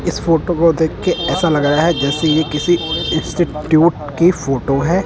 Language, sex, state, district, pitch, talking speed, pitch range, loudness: Hindi, male, Punjab, Kapurthala, 160 Hz, 180 wpm, 150-170 Hz, -15 LUFS